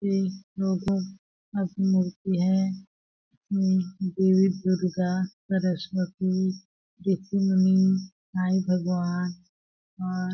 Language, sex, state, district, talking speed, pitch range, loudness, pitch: Hindi, female, Chhattisgarh, Balrampur, 80 wpm, 185-190 Hz, -26 LUFS, 190 Hz